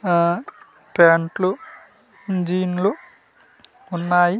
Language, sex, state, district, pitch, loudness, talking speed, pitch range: Telugu, male, Andhra Pradesh, Manyam, 180 Hz, -20 LUFS, 55 wpm, 175-195 Hz